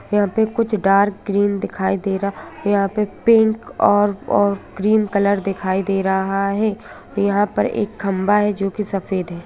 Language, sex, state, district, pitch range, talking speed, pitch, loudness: Hindi, female, Bihar, Saran, 195-210 Hz, 180 wpm, 200 Hz, -19 LUFS